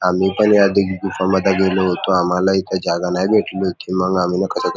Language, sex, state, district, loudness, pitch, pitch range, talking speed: Marathi, male, Maharashtra, Nagpur, -17 LUFS, 95 Hz, 90-95 Hz, 215 wpm